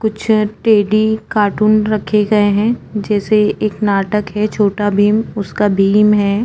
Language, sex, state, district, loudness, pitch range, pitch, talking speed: Hindi, female, Uttarakhand, Tehri Garhwal, -14 LUFS, 205-215 Hz, 210 Hz, 140 wpm